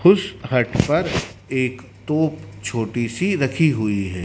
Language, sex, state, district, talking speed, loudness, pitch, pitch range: Hindi, male, Madhya Pradesh, Dhar, 140 wpm, -21 LUFS, 125 Hz, 105-155 Hz